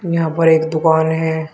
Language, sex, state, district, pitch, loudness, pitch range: Hindi, male, Uttar Pradesh, Shamli, 160 Hz, -15 LUFS, 160-165 Hz